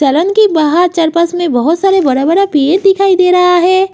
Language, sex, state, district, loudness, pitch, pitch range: Hindi, female, Uttar Pradesh, Jyotiba Phule Nagar, -10 LUFS, 355 Hz, 320-380 Hz